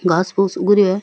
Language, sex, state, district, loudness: Rajasthani, female, Rajasthan, Churu, -16 LUFS